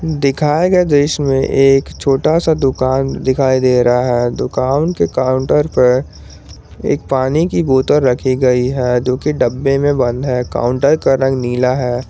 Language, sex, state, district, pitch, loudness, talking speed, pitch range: Hindi, male, Jharkhand, Garhwa, 130 Hz, -14 LUFS, 165 wpm, 125-140 Hz